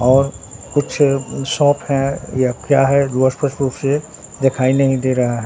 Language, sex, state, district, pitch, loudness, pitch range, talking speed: Hindi, male, Bihar, Katihar, 135 Hz, -17 LUFS, 130-140 Hz, 175 wpm